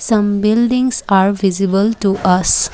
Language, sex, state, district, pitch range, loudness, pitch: English, female, Assam, Kamrup Metropolitan, 195-220 Hz, -14 LUFS, 200 Hz